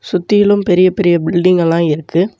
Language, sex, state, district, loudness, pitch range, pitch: Tamil, male, Tamil Nadu, Namakkal, -12 LUFS, 170-195 Hz, 180 Hz